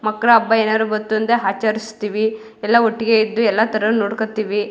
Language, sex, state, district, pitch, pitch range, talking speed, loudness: Kannada, female, Karnataka, Mysore, 220 Hz, 215-225 Hz, 150 wpm, -17 LUFS